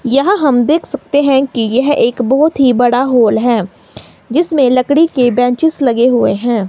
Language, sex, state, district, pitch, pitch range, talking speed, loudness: Hindi, male, Himachal Pradesh, Shimla, 255 Hz, 240-285 Hz, 180 wpm, -12 LUFS